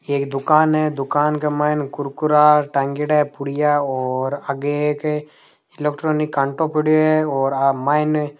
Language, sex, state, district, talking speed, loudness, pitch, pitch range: Hindi, male, Rajasthan, Nagaur, 150 wpm, -19 LUFS, 150 Hz, 140-150 Hz